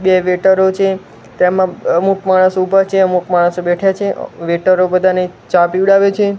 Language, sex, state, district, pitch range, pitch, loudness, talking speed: Gujarati, male, Gujarat, Gandhinagar, 180-195 Hz, 185 Hz, -13 LUFS, 160 wpm